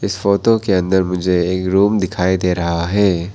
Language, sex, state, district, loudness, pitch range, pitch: Hindi, male, Arunachal Pradesh, Papum Pare, -16 LUFS, 90-100 Hz, 95 Hz